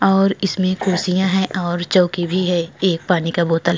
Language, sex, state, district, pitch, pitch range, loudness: Hindi, female, Uttar Pradesh, Etah, 180 Hz, 175-190 Hz, -18 LUFS